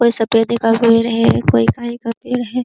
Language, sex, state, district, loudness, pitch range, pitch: Hindi, female, Uttar Pradesh, Jyotiba Phule Nagar, -15 LUFS, 225-235 Hz, 230 Hz